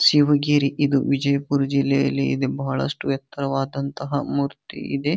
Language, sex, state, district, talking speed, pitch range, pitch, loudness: Kannada, male, Karnataka, Bijapur, 105 wpm, 135-145 Hz, 140 Hz, -22 LUFS